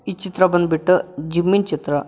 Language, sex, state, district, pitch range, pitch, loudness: Kannada, male, Karnataka, Koppal, 155-185 Hz, 175 Hz, -18 LUFS